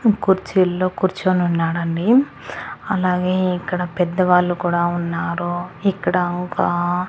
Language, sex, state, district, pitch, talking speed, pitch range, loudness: Telugu, female, Andhra Pradesh, Annamaya, 180 Hz, 95 wpm, 175-185 Hz, -19 LUFS